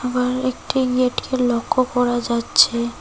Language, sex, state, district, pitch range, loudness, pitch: Bengali, female, West Bengal, Cooch Behar, 240-255 Hz, -19 LUFS, 250 Hz